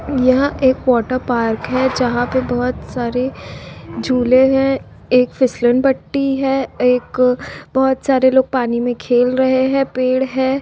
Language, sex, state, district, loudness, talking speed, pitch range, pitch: Hindi, female, Chhattisgarh, Rajnandgaon, -16 LUFS, 145 wpm, 250-265 Hz, 255 Hz